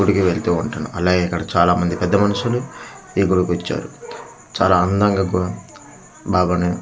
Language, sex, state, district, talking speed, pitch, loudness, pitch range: Telugu, male, Andhra Pradesh, Manyam, 160 wpm, 90 Hz, -19 LUFS, 90-100 Hz